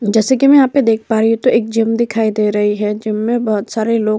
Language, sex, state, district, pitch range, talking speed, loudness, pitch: Hindi, female, Uttar Pradesh, Hamirpur, 215-235 Hz, 315 wpm, -14 LUFS, 225 Hz